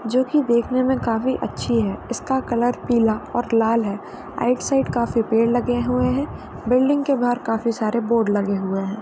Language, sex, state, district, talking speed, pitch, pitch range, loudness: Hindi, female, Uttar Pradesh, Varanasi, 185 wpm, 235 Hz, 225-255 Hz, -21 LUFS